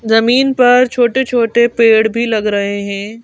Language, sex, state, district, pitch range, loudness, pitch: Hindi, female, Madhya Pradesh, Bhopal, 220-245 Hz, -12 LUFS, 230 Hz